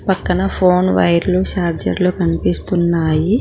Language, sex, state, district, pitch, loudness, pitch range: Telugu, female, Telangana, Mahabubabad, 180 Hz, -16 LUFS, 165-185 Hz